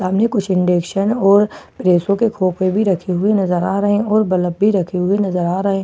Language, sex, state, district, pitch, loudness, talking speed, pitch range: Hindi, female, Bihar, Katihar, 195 Hz, -16 LUFS, 235 wpm, 180-205 Hz